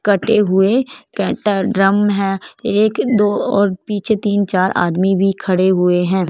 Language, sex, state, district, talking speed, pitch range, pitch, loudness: Hindi, female, Punjab, Fazilka, 150 wpm, 190-210 Hz, 195 Hz, -16 LUFS